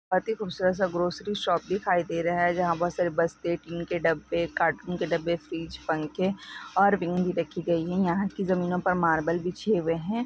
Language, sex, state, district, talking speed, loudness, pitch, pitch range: Hindi, female, Rajasthan, Nagaur, 195 wpm, -27 LUFS, 175 Hz, 170-185 Hz